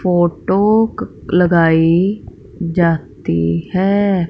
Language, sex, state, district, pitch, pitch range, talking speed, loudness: Hindi, female, Punjab, Fazilka, 180 Hz, 165-200 Hz, 55 wpm, -15 LUFS